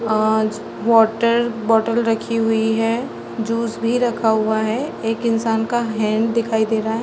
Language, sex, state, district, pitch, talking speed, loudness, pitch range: Hindi, female, Bihar, Sitamarhi, 225 Hz, 160 wpm, -19 LUFS, 220-230 Hz